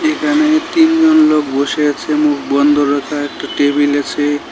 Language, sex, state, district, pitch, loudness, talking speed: Bengali, male, West Bengal, Cooch Behar, 145 Hz, -13 LUFS, 145 wpm